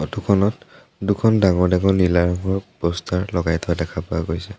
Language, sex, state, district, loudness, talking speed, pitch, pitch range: Assamese, male, Assam, Sonitpur, -20 LUFS, 170 wpm, 90 Hz, 85-100 Hz